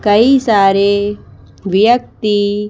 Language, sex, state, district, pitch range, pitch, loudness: Hindi, female, Madhya Pradesh, Bhopal, 200-220 Hz, 205 Hz, -12 LUFS